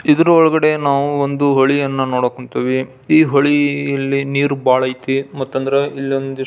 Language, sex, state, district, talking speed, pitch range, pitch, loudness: Kannada, male, Karnataka, Belgaum, 150 wpm, 135-145 Hz, 140 Hz, -16 LUFS